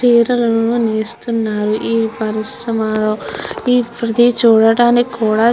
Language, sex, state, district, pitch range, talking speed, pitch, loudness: Telugu, female, Andhra Pradesh, Guntur, 220-240 Hz, 85 wpm, 230 Hz, -15 LUFS